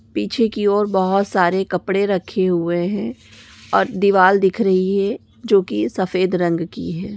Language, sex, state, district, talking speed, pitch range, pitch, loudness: Hindi, female, Maharashtra, Solapur, 165 wpm, 175-200 Hz, 190 Hz, -18 LUFS